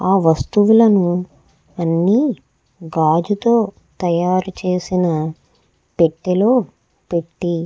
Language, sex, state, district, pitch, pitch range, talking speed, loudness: Telugu, female, Andhra Pradesh, Krishna, 180 Hz, 165-200 Hz, 70 wpm, -17 LUFS